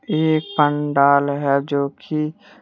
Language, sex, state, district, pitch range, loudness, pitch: Hindi, male, Jharkhand, Deoghar, 140-155 Hz, -19 LUFS, 150 Hz